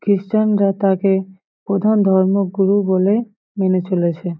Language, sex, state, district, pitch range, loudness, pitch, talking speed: Bengali, female, West Bengal, Paschim Medinipur, 190-205 Hz, -17 LUFS, 195 Hz, 110 wpm